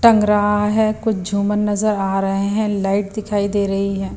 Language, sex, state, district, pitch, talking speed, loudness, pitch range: Hindi, female, Bihar, Patna, 205 Hz, 200 wpm, -18 LUFS, 195-215 Hz